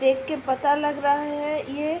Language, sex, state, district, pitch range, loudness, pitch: Hindi, female, Uttar Pradesh, Budaun, 280-300 Hz, -24 LUFS, 290 Hz